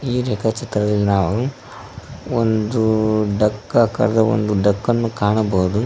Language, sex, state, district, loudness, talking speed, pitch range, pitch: Kannada, male, Karnataka, Koppal, -18 LUFS, 100 wpm, 105-120 Hz, 110 Hz